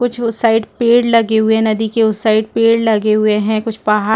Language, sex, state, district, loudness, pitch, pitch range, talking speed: Hindi, female, Chhattisgarh, Bastar, -14 LUFS, 220 Hz, 215-230 Hz, 245 wpm